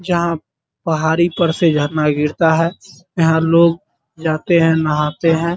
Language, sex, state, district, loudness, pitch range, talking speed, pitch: Hindi, male, Bihar, Muzaffarpur, -16 LUFS, 155-170 Hz, 150 wpm, 165 Hz